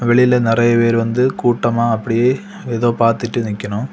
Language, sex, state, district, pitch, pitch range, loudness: Tamil, male, Tamil Nadu, Kanyakumari, 120 Hz, 115-125 Hz, -16 LUFS